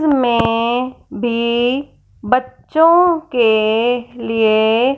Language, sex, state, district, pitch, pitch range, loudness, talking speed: Hindi, female, Punjab, Fazilka, 240 Hz, 230-260 Hz, -15 LUFS, 60 wpm